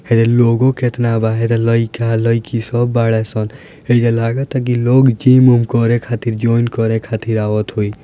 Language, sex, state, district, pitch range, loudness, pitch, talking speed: Bhojpuri, male, Bihar, Gopalganj, 115-120 Hz, -14 LUFS, 115 Hz, 170 wpm